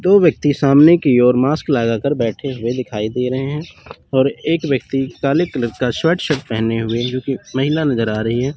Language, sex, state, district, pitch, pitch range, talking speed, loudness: Hindi, male, Chandigarh, Chandigarh, 130 Hz, 120-145 Hz, 205 wpm, -17 LUFS